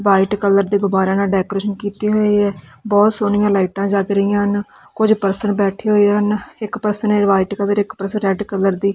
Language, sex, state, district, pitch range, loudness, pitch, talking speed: Punjabi, female, Punjab, Kapurthala, 195-210 Hz, -17 LUFS, 205 Hz, 205 wpm